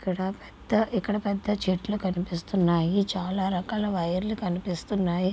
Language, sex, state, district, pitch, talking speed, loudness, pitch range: Telugu, female, Andhra Pradesh, Guntur, 190 Hz, 80 wpm, -27 LUFS, 180-210 Hz